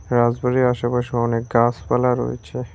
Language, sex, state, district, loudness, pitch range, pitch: Bengali, male, West Bengal, Cooch Behar, -20 LUFS, 120-125 Hz, 120 Hz